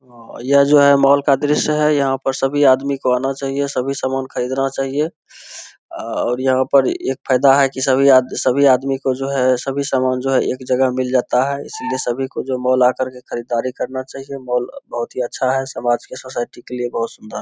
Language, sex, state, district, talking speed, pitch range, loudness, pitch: Hindi, male, Bihar, Saharsa, 230 wpm, 125-135 Hz, -18 LUFS, 130 Hz